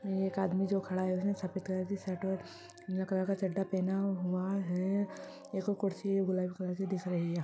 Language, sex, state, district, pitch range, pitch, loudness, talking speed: Hindi, female, Uttar Pradesh, Ghazipur, 185-195 Hz, 190 Hz, -35 LUFS, 225 wpm